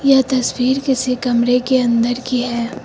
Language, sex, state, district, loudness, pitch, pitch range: Hindi, female, Uttar Pradesh, Lucknow, -16 LUFS, 250 Hz, 245-260 Hz